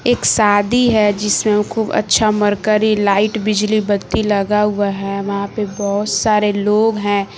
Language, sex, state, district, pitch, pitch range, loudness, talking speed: Hindi, female, Bihar, West Champaran, 210 Hz, 205-215 Hz, -15 LUFS, 155 wpm